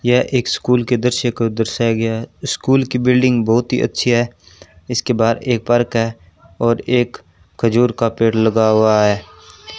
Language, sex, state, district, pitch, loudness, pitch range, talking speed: Hindi, male, Rajasthan, Bikaner, 115 Hz, -16 LUFS, 110-125 Hz, 180 wpm